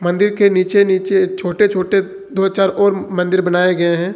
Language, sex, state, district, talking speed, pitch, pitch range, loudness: Hindi, male, Jharkhand, Ranchi, 185 wpm, 190 Hz, 180-195 Hz, -15 LUFS